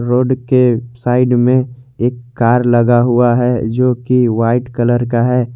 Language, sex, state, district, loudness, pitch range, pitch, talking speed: Hindi, male, Jharkhand, Garhwa, -13 LUFS, 120-125 Hz, 120 Hz, 160 wpm